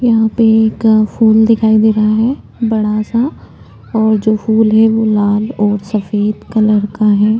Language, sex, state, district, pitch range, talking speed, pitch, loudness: Hindi, female, Uttarakhand, Tehri Garhwal, 215-225 Hz, 160 wpm, 220 Hz, -12 LUFS